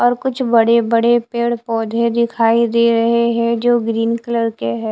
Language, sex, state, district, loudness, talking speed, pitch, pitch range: Hindi, female, Bihar, West Champaran, -16 LUFS, 185 wpm, 235 Hz, 230-235 Hz